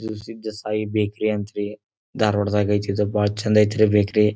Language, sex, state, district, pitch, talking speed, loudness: Kannada, male, Karnataka, Dharwad, 105 Hz, 165 wpm, -22 LUFS